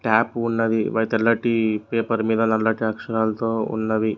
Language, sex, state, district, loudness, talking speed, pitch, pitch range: Telugu, male, Telangana, Mahabubabad, -22 LUFS, 130 wpm, 110 Hz, 110-115 Hz